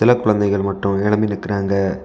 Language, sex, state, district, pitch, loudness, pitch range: Tamil, male, Tamil Nadu, Kanyakumari, 100 Hz, -18 LUFS, 100-105 Hz